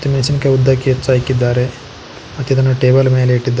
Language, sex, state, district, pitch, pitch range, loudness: Kannada, male, Karnataka, Koppal, 130 Hz, 125-135 Hz, -14 LUFS